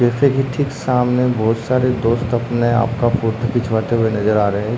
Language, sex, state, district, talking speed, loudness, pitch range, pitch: Hindi, male, Uttarakhand, Uttarkashi, 215 wpm, -17 LUFS, 115-125 Hz, 120 Hz